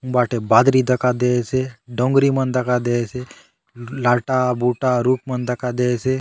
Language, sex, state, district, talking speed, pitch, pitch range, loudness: Halbi, male, Chhattisgarh, Bastar, 155 wpm, 125 Hz, 120-130 Hz, -19 LUFS